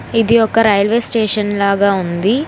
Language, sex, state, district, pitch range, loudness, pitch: Telugu, female, Telangana, Hyderabad, 200-225 Hz, -14 LUFS, 215 Hz